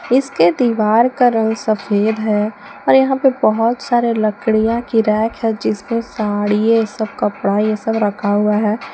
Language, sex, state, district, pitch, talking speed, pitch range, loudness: Hindi, female, Jharkhand, Palamu, 220 Hz, 175 wpm, 210-235 Hz, -16 LUFS